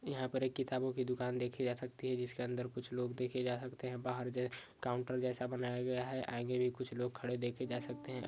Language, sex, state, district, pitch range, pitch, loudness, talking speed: Hindi, male, Maharashtra, Pune, 125-130 Hz, 125 Hz, -40 LUFS, 245 wpm